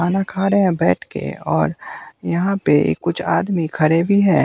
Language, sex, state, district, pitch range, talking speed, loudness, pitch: Hindi, male, Bihar, West Champaran, 170-200 Hz, 190 wpm, -18 LUFS, 190 Hz